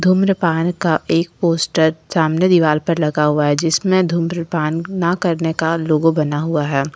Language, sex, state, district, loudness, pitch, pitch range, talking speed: Hindi, female, Jharkhand, Ranchi, -17 LUFS, 165 Hz, 155-170 Hz, 165 wpm